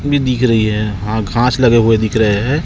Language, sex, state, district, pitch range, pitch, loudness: Hindi, male, Chhattisgarh, Raipur, 110-125 Hz, 115 Hz, -14 LUFS